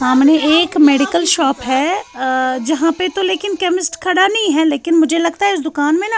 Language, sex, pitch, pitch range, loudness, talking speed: Urdu, female, 325 Hz, 290-365 Hz, -14 LUFS, 215 wpm